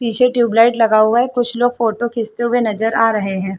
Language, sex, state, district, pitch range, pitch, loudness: Hindi, female, Chhattisgarh, Bilaspur, 220-240 Hz, 230 Hz, -15 LUFS